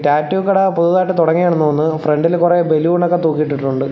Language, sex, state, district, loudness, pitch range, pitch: Malayalam, male, Kerala, Thiruvananthapuram, -15 LUFS, 150-175 Hz, 165 Hz